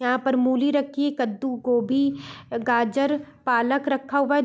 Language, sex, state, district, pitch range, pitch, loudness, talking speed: Hindi, female, Uttarakhand, Tehri Garhwal, 245-280 Hz, 265 Hz, -23 LUFS, 160 wpm